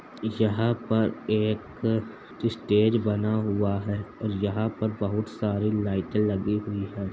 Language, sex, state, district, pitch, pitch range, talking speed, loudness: Hindi, male, Uttar Pradesh, Jalaun, 105 Hz, 105-110 Hz, 135 wpm, -27 LUFS